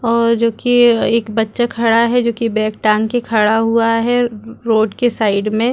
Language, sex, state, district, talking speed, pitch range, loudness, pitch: Hindi, female, Chhattisgarh, Rajnandgaon, 200 wpm, 220-240 Hz, -15 LUFS, 230 Hz